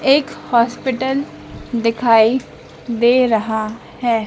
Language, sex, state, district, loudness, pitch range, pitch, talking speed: Hindi, female, Madhya Pradesh, Dhar, -17 LUFS, 230-260 Hz, 235 Hz, 85 wpm